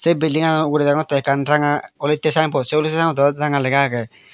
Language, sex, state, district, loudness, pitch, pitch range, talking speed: Chakma, male, Tripura, Dhalai, -18 LUFS, 150 Hz, 140-155 Hz, 205 wpm